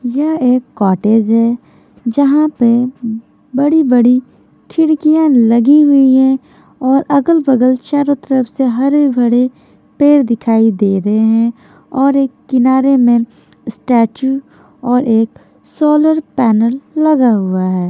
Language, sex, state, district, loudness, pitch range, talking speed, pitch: Hindi, female, Himachal Pradesh, Shimla, -12 LUFS, 235-280 Hz, 115 wpm, 255 Hz